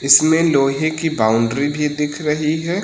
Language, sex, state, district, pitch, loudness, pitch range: Hindi, male, Uttar Pradesh, Lucknow, 150 Hz, -17 LUFS, 140-160 Hz